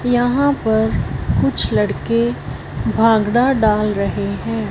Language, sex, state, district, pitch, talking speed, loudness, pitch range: Hindi, female, Punjab, Fazilka, 225 Hz, 100 wpm, -17 LUFS, 215-245 Hz